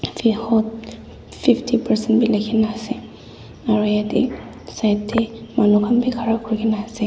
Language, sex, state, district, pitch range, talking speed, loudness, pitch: Nagamese, female, Nagaland, Dimapur, 215-230 Hz, 155 wpm, -20 LUFS, 220 Hz